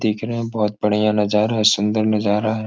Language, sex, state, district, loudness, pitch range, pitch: Hindi, male, Bihar, Jahanabad, -19 LUFS, 105-110 Hz, 105 Hz